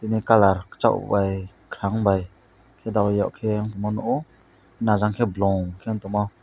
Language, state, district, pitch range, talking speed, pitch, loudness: Kokborok, Tripura, West Tripura, 95-110 Hz, 110 wpm, 105 Hz, -23 LUFS